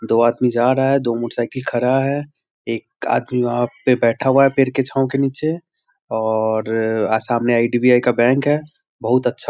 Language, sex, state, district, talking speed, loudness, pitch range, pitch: Hindi, male, Bihar, Sitamarhi, 185 wpm, -18 LUFS, 120-135 Hz, 125 Hz